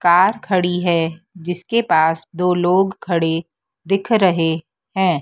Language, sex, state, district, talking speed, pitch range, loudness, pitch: Hindi, female, Madhya Pradesh, Dhar, 125 wpm, 165-190 Hz, -18 LUFS, 180 Hz